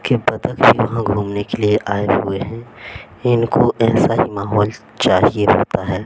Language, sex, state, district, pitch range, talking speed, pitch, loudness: Hindi, male, Madhya Pradesh, Katni, 100-115 Hz, 160 wpm, 105 Hz, -16 LUFS